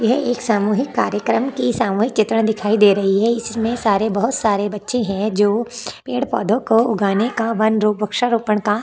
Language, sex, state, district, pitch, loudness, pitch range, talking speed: Hindi, female, Chhattisgarh, Korba, 220 Hz, -18 LUFS, 210-235 Hz, 190 wpm